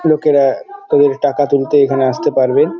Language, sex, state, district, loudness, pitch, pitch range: Bengali, male, West Bengal, Dakshin Dinajpur, -13 LUFS, 145 Hz, 135-170 Hz